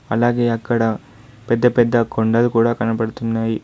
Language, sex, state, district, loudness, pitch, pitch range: Telugu, male, Telangana, Adilabad, -18 LUFS, 115 Hz, 115-120 Hz